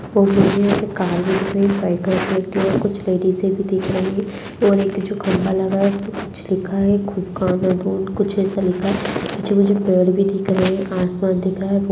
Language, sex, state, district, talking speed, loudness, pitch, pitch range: Hindi, female, Bihar, Purnia, 215 wpm, -19 LUFS, 195 Hz, 190-200 Hz